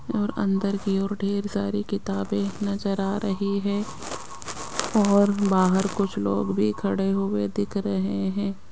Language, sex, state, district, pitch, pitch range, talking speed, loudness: Hindi, female, Rajasthan, Jaipur, 200 Hz, 190-200 Hz, 145 wpm, -25 LUFS